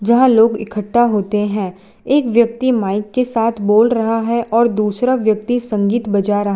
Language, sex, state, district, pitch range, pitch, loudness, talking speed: Hindi, female, Gujarat, Valsad, 210-235 Hz, 225 Hz, -15 LUFS, 175 wpm